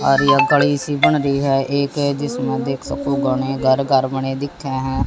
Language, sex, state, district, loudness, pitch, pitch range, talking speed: Hindi, female, Haryana, Jhajjar, -18 LUFS, 140 Hz, 135-145 Hz, 190 wpm